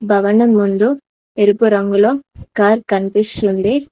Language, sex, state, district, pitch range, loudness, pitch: Telugu, female, Telangana, Mahabubabad, 205-225 Hz, -14 LUFS, 210 Hz